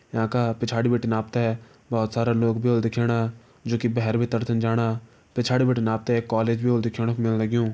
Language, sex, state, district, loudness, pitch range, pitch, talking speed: Hindi, male, Uttarakhand, Tehri Garhwal, -24 LUFS, 115-120 Hz, 115 Hz, 225 wpm